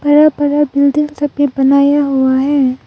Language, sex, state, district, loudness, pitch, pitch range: Hindi, female, Arunachal Pradesh, Papum Pare, -12 LUFS, 285 Hz, 270-290 Hz